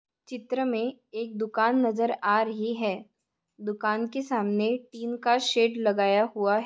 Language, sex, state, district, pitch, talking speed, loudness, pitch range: Hindi, female, Maharashtra, Sindhudurg, 225 Hz, 145 wpm, -27 LUFS, 215-240 Hz